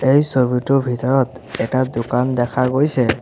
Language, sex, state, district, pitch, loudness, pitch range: Assamese, male, Assam, Sonitpur, 130 Hz, -18 LUFS, 125-135 Hz